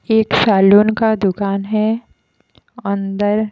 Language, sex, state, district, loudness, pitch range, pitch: Hindi, female, Haryana, Jhajjar, -15 LUFS, 200-220 Hz, 205 Hz